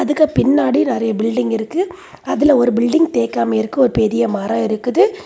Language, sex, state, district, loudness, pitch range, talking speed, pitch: Tamil, female, Tamil Nadu, Kanyakumari, -16 LUFS, 220-295 Hz, 160 wpm, 240 Hz